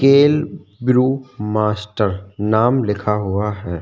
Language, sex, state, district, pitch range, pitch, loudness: Hindi, male, Uttarakhand, Tehri Garhwal, 105-130 Hz, 105 Hz, -18 LUFS